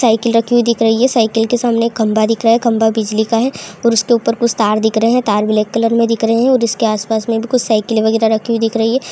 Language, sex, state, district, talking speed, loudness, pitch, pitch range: Hindi, female, West Bengal, North 24 Parganas, 285 wpm, -14 LUFS, 230 Hz, 220-235 Hz